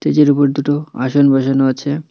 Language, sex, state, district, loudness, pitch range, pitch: Bengali, male, West Bengal, Cooch Behar, -14 LUFS, 135-145 Hz, 140 Hz